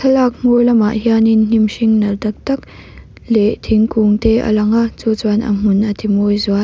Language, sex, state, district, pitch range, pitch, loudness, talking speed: Mizo, female, Mizoram, Aizawl, 210-230 Hz, 220 Hz, -14 LUFS, 215 wpm